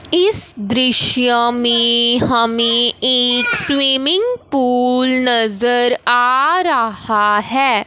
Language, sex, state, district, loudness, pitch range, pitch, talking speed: Hindi, female, Punjab, Fazilka, -13 LUFS, 235-260 Hz, 245 Hz, 85 wpm